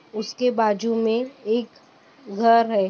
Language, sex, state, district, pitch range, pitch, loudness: Hindi, female, Maharashtra, Sindhudurg, 215-230 Hz, 225 Hz, -22 LUFS